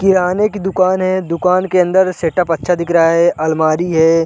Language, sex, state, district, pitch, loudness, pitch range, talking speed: Hindi, male, Chhattisgarh, Sarguja, 180 Hz, -14 LUFS, 165-185 Hz, 195 wpm